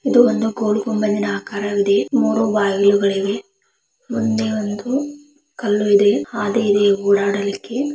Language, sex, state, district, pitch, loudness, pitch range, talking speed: Kannada, female, Karnataka, Belgaum, 210 Hz, -18 LUFS, 200-235 Hz, 120 wpm